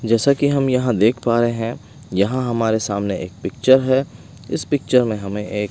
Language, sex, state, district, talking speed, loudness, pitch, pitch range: Hindi, male, Odisha, Malkangiri, 200 wpm, -19 LUFS, 115 Hz, 105-130 Hz